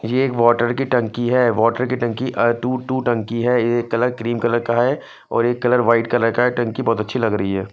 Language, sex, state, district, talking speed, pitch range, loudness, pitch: Hindi, male, Punjab, Fazilka, 240 wpm, 115-125 Hz, -19 LUFS, 120 Hz